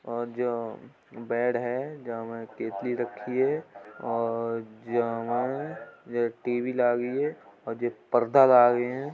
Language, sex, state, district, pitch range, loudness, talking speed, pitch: Hindi, male, Uttar Pradesh, Budaun, 115-125 Hz, -27 LUFS, 140 wpm, 120 Hz